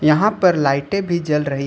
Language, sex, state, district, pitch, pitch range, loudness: Hindi, male, Jharkhand, Ranchi, 150 Hz, 140-180 Hz, -18 LUFS